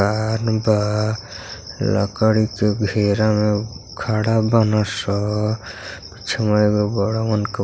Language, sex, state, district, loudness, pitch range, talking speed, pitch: Bhojpuri, male, Uttar Pradesh, Gorakhpur, -19 LUFS, 105-110 Hz, 100 wpm, 105 Hz